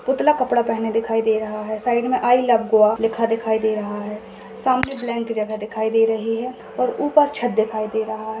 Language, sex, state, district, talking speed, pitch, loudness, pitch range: Hindi, female, Goa, North and South Goa, 205 wpm, 225 Hz, -20 LUFS, 220-245 Hz